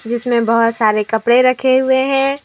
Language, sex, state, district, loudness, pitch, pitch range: Hindi, female, Jharkhand, Deoghar, -14 LUFS, 240 Hz, 230-260 Hz